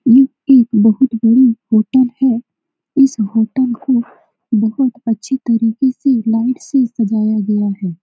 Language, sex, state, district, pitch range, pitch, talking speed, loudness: Hindi, female, Bihar, Saran, 220-265 Hz, 240 Hz, 135 wpm, -14 LUFS